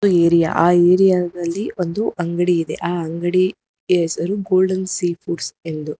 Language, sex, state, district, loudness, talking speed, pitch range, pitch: Kannada, female, Karnataka, Bangalore, -18 LUFS, 140 wpm, 170-185 Hz, 175 Hz